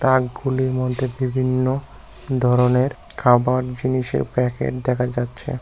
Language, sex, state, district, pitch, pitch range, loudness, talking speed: Bengali, male, West Bengal, Cooch Behar, 130 Hz, 125-130 Hz, -21 LUFS, 95 wpm